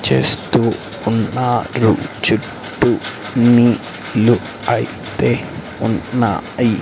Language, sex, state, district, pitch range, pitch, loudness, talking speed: Telugu, male, Andhra Pradesh, Sri Satya Sai, 105-120 Hz, 115 Hz, -16 LUFS, 55 wpm